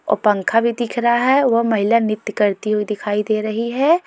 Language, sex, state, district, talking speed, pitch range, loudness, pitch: Hindi, female, Goa, North and South Goa, 220 wpm, 210-235 Hz, -18 LUFS, 220 Hz